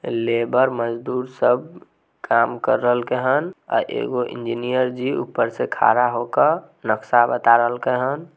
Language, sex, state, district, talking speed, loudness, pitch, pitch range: Maithili, male, Bihar, Samastipur, 135 wpm, -20 LUFS, 125 Hz, 120-130 Hz